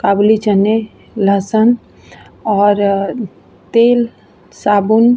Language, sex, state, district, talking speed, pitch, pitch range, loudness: Hindi, female, Bihar, Vaishali, 80 wpm, 215 Hz, 200-230 Hz, -14 LUFS